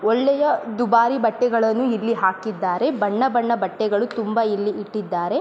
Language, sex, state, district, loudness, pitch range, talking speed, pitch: Kannada, female, Karnataka, Mysore, -21 LUFS, 210-240 Hz, 120 wpm, 225 Hz